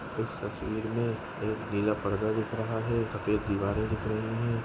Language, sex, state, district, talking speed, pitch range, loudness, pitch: Hindi, male, West Bengal, Kolkata, 170 wpm, 105-115 Hz, -31 LUFS, 110 Hz